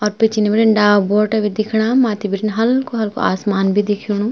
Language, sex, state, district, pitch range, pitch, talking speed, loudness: Garhwali, female, Uttarakhand, Tehri Garhwal, 205-220 Hz, 215 Hz, 180 wpm, -16 LUFS